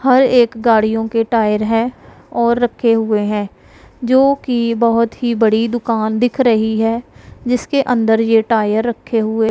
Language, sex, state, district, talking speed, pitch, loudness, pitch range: Hindi, female, Punjab, Pathankot, 160 wpm, 230 Hz, -15 LUFS, 220-245 Hz